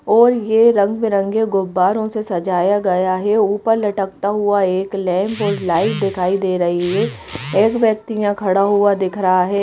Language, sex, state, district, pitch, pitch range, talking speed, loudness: Hindi, female, Madhya Pradesh, Bhopal, 200 Hz, 185-215 Hz, 175 wpm, -17 LUFS